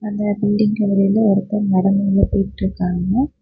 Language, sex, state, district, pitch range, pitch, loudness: Tamil, female, Tamil Nadu, Kanyakumari, 195-210 Hz, 200 Hz, -17 LUFS